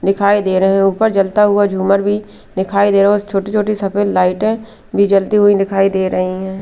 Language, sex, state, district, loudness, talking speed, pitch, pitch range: Hindi, female, Bihar, Katihar, -14 LUFS, 220 wpm, 200 Hz, 195-205 Hz